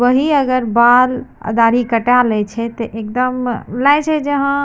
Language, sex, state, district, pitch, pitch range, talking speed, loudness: Maithili, female, Bihar, Madhepura, 245 Hz, 230-270 Hz, 195 wpm, -15 LUFS